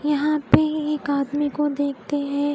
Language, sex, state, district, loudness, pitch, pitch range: Hindi, female, Odisha, Khordha, -22 LUFS, 290 Hz, 285-300 Hz